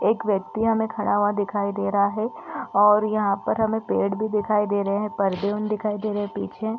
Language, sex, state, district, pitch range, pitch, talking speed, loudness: Hindi, female, Uttar Pradesh, Deoria, 200-215 Hz, 210 Hz, 230 wpm, -23 LUFS